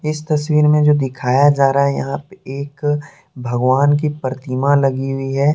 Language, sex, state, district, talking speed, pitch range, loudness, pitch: Hindi, male, Jharkhand, Deoghar, 185 wpm, 135-150 Hz, -17 LUFS, 140 Hz